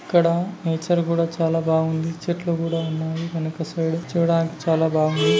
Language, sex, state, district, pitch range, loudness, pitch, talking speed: Telugu, male, Telangana, Nalgonda, 160-170 Hz, -22 LUFS, 165 Hz, 145 wpm